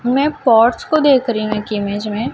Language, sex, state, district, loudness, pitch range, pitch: Hindi, female, Chhattisgarh, Raipur, -15 LUFS, 215-275 Hz, 240 Hz